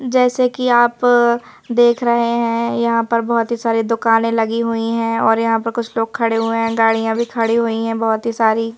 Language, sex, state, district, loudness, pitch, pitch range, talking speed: Hindi, female, Madhya Pradesh, Bhopal, -16 LUFS, 230 Hz, 225-235 Hz, 210 wpm